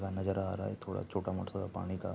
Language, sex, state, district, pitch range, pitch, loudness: Hindi, male, Bihar, Saharsa, 95-100 Hz, 95 Hz, -38 LUFS